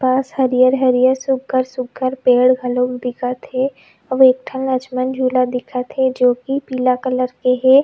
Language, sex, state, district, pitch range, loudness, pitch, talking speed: Chhattisgarhi, female, Chhattisgarh, Rajnandgaon, 250-260 Hz, -17 LUFS, 255 Hz, 170 wpm